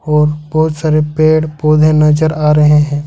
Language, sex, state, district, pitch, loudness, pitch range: Hindi, male, Jharkhand, Ranchi, 150 Hz, -11 LUFS, 150-155 Hz